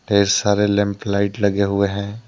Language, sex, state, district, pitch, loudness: Hindi, male, Jharkhand, Deoghar, 100 Hz, -18 LUFS